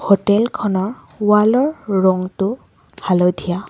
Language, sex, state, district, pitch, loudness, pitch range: Assamese, female, Assam, Sonitpur, 200 Hz, -17 LUFS, 185-220 Hz